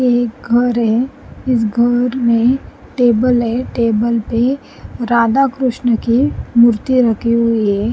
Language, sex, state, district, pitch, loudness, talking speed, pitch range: Hindi, female, Punjab, Pathankot, 235 Hz, -15 LUFS, 135 wpm, 230-250 Hz